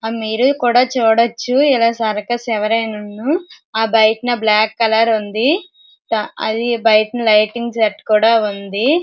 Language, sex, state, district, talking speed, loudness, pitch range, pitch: Telugu, female, Andhra Pradesh, Srikakulam, 135 wpm, -15 LUFS, 220-240 Hz, 225 Hz